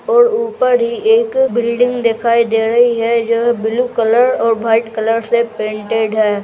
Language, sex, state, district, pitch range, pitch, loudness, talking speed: Hindi, female, Uttarakhand, Tehri Garhwal, 225-250 Hz, 235 Hz, -14 LUFS, 165 wpm